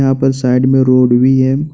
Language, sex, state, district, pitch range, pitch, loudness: Hindi, male, Jharkhand, Ranchi, 130-135 Hz, 130 Hz, -11 LUFS